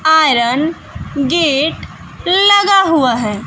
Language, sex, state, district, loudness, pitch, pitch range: Hindi, female, Bihar, West Champaran, -12 LUFS, 315 Hz, 260-350 Hz